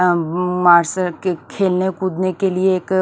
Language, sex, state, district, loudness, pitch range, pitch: Hindi, female, Maharashtra, Washim, -17 LUFS, 175-190 Hz, 185 Hz